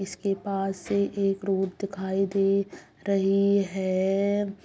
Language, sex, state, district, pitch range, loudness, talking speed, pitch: Hindi, female, Bihar, Purnia, 195-200 Hz, -26 LUFS, 115 wpm, 195 Hz